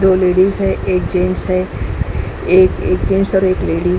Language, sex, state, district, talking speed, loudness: Hindi, female, Uttar Pradesh, Hamirpur, 180 wpm, -15 LUFS